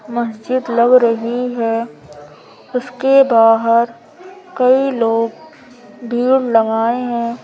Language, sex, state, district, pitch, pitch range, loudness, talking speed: Hindi, female, Madhya Pradesh, Umaria, 235 Hz, 230-255 Hz, -15 LUFS, 90 wpm